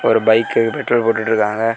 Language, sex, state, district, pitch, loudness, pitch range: Tamil, male, Tamil Nadu, Kanyakumari, 115 Hz, -16 LUFS, 110-115 Hz